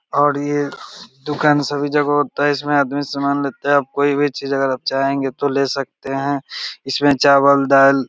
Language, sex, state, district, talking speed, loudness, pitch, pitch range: Hindi, male, Bihar, Begusarai, 200 wpm, -17 LUFS, 140 Hz, 135-145 Hz